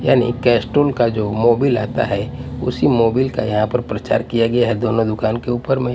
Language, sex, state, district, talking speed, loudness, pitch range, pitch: Hindi, male, Punjab, Pathankot, 220 wpm, -17 LUFS, 115-125 Hz, 120 Hz